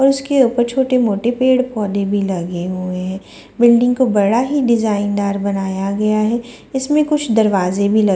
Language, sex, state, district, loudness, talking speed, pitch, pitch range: Hindi, female, Delhi, New Delhi, -16 LUFS, 160 wpm, 215 Hz, 200-255 Hz